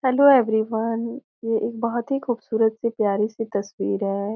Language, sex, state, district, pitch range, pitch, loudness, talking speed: Hindi, female, Bihar, Jahanabad, 215-235 Hz, 225 Hz, -23 LUFS, 165 wpm